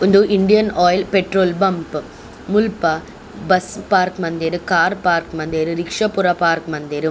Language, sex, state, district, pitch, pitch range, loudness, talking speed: Tulu, female, Karnataka, Dakshina Kannada, 180 Hz, 165-195 Hz, -17 LUFS, 135 wpm